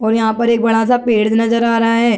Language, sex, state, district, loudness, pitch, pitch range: Hindi, female, Bihar, Gopalganj, -14 LUFS, 230 Hz, 225-235 Hz